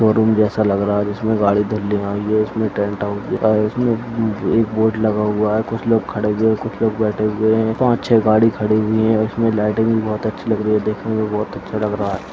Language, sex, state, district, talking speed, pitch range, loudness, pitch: Hindi, male, Bihar, Purnia, 245 wpm, 105-110 Hz, -18 LUFS, 110 Hz